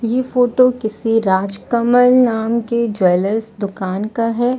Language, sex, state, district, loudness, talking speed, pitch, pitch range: Hindi, female, Odisha, Sambalpur, -16 LUFS, 130 wpm, 230 Hz, 205-245 Hz